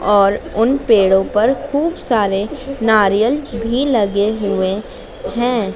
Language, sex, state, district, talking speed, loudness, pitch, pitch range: Hindi, female, Madhya Pradesh, Dhar, 115 wpm, -16 LUFS, 220 Hz, 200-250 Hz